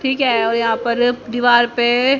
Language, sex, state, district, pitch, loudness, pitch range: Hindi, female, Haryana, Rohtak, 240 Hz, -16 LUFS, 235-250 Hz